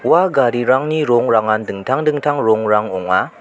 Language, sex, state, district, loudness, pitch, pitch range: Garo, male, Meghalaya, West Garo Hills, -16 LUFS, 120 Hz, 110-145 Hz